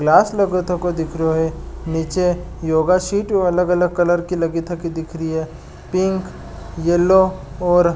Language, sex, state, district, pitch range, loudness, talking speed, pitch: Marwari, male, Rajasthan, Nagaur, 160-180 Hz, -19 LUFS, 160 wpm, 175 Hz